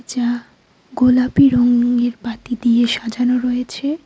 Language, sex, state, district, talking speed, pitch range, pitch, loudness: Bengali, female, Tripura, Unakoti, 105 wpm, 240-250 Hz, 245 Hz, -17 LUFS